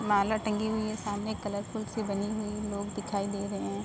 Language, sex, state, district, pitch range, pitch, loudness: Hindi, female, Uttar Pradesh, Ghazipur, 200-215 Hz, 210 Hz, -32 LUFS